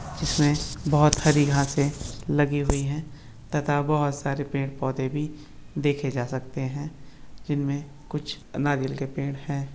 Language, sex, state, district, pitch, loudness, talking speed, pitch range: Hindi, male, Maharashtra, Solapur, 145 Hz, -26 LUFS, 135 wpm, 140-150 Hz